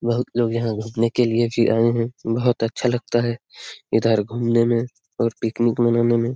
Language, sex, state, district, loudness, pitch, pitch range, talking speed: Hindi, male, Bihar, Lakhisarai, -21 LUFS, 115 Hz, 115-120 Hz, 190 wpm